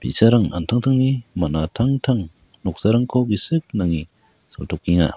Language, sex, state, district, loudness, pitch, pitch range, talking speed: Garo, male, Meghalaya, West Garo Hills, -20 LUFS, 110 Hz, 85-125 Hz, 80 wpm